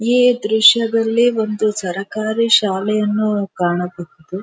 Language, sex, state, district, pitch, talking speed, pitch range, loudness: Kannada, female, Karnataka, Dharwad, 215 Hz, 80 wpm, 190-225 Hz, -16 LUFS